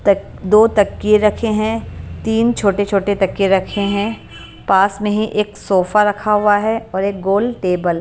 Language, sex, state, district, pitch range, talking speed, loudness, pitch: Hindi, female, Himachal Pradesh, Shimla, 195-215 Hz, 170 wpm, -16 LUFS, 205 Hz